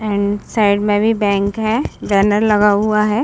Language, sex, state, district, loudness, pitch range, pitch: Hindi, female, Chhattisgarh, Bilaspur, -15 LUFS, 205-215 Hz, 210 Hz